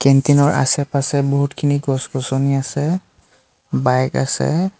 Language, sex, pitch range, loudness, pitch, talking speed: Assamese, male, 135-145 Hz, -18 LUFS, 140 Hz, 100 wpm